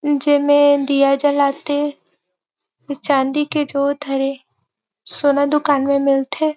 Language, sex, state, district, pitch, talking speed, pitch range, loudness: Chhattisgarhi, female, Chhattisgarh, Rajnandgaon, 285 Hz, 120 wpm, 275-290 Hz, -17 LUFS